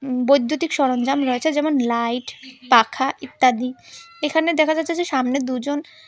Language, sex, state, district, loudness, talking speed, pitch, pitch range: Bengali, female, Tripura, West Tripura, -20 LUFS, 130 wpm, 275 Hz, 255-310 Hz